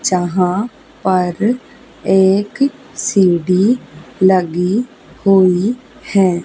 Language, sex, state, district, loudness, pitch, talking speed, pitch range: Hindi, female, Haryana, Charkhi Dadri, -15 LUFS, 195 Hz, 65 wpm, 185-235 Hz